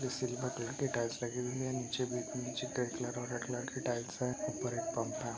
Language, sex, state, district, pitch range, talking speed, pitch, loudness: Hindi, male, Uttar Pradesh, Etah, 120-125 Hz, 225 wpm, 125 Hz, -38 LUFS